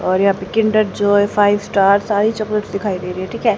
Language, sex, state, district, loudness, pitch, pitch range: Hindi, female, Haryana, Charkhi Dadri, -16 LUFS, 205 Hz, 195-215 Hz